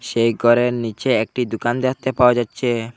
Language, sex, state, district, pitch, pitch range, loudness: Bengali, male, Assam, Hailakandi, 120 Hz, 115-125 Hz, -19 LUFS